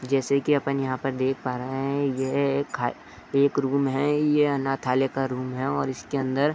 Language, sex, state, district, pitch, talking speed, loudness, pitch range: Hindi, male, Uttar Pradesh, Etah, 135 Hz, 220 wpm, -25 LUFS, 130-140 Hz